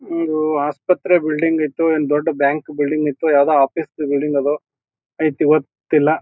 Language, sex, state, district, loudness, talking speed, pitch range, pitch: Kannada, male, Karnataka, Bijapur, -18 LUFS, 165 wpm, 145-160 Hz, 150 Hz